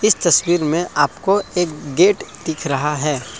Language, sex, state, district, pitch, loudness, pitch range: Hindi, male, Assam, Kamrup Metropolitan, 165 Hz, -18 LUFS, 150-180 Hz